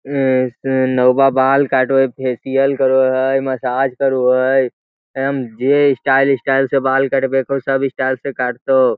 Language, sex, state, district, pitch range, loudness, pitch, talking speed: Hindi, male, Bihar, Lakhisarai, 130-135 Hz, -15 LUFS, 135 Hz, 175 wpm